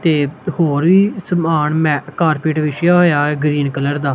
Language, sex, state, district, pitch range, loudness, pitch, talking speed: Punjabi, male, Punjab, Kapurthala, 145-170 Hz, -15 LUFS, 155 Hz, 160 wpm